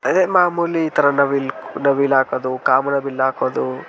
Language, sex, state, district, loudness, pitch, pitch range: Kannada, male, Karnataka, Shimoga, -18 LUFS, 140 Hz, 130-155 Hz